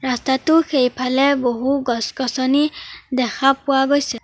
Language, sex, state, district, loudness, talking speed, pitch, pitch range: Assamese, female, Assam, Sonitpur, -18 LUFS, 100 wpm, 265 Hz, 255-280 Hz